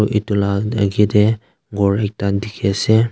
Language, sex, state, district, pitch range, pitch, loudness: Nagamese, male, Nagaland, Kohima, 100-110 Hz, 105 Hz, -18 LUFS